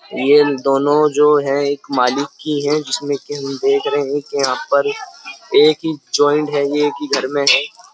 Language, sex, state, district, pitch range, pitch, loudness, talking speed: Hindi, male, Uttar Pradesh, Jyotiba Phule Nagar, 140-150 Hz, 145 Hz, -16 LUFS, 180 wpm